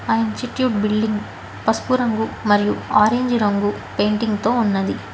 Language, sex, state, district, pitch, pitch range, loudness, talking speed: Telugu, female, Telangana, Hyderabad, 215 Hz, 205-235 Hz, -19 LUFS, 130 wpm